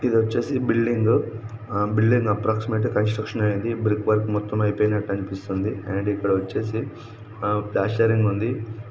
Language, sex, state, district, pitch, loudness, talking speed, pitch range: Telugu, male, Telangana, Nalgonda, 110 Hz, -23 LUFS, 130 wpm, 105-115 Hz